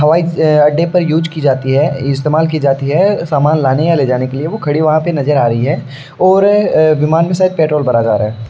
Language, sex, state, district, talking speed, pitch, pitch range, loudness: Hindi, male, Uttar Pradesh, Varanasi, 240 wpm, 150 Hz, 140-165 Hz, -12 LUFS